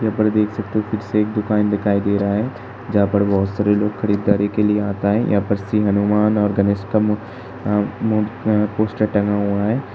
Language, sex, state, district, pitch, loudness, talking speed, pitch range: Hindi, male, Uttar Pradesh, Hamirpur, 105 Hz, -19 LUFS, 230 wpm, 100-110 Hz